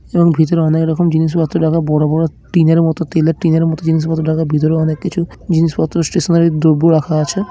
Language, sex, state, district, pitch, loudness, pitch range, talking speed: Bengali, male, West Bengal, Dakshin Dinajpur, 160 Hz, -14 LUFS, 160-165 Hz, 200 wpm